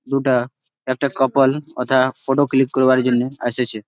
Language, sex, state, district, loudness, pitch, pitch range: Bengali, male, West Bengal, Malda, -18 LUFS, 130 Hz, 125-135 Hz